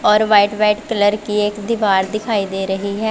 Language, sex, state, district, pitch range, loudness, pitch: Hindi, female, Punjab, Pathankot, 200-215 Hz, -17 LUFS, 210 Hz